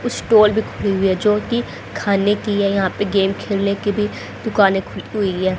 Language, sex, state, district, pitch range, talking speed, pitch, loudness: Hindi, female, Haryana, Jhajjar, 195-210 Hz, 205 wpm, 205 Hz, -18 LUFS